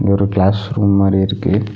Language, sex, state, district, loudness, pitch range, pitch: Tamil, male, Tamil Nadu, Nilgiris, -15 LUFS, 100-105 Hz, 100 Hz